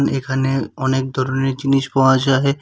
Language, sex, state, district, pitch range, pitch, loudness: Bengali, male, West Bengal, Cooch Behar, 130-135 Hz, 135 Hz, -18 LUFS